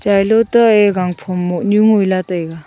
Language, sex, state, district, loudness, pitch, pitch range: Wancho, female, Arunachal Pradesh, Longding, -13 LUFS, 195 Hz, 180-215 Hz